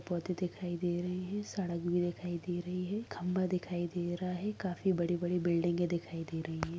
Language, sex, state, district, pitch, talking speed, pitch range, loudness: Hindi, female, Maharashtra, Aurangabad, 175 Hz, 205 wpm, 175-180 Hz, -35 LUFS